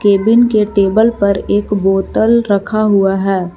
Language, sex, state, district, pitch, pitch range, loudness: Hindi, female, Jharkhand, Palamu, 205 Hz, 195-215 Hz, -13 LUFS